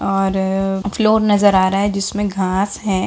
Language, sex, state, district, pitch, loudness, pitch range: Hindi, female, Bihar, Jahanabad, 195 Hz, -16 LUFS, 190-205 Hz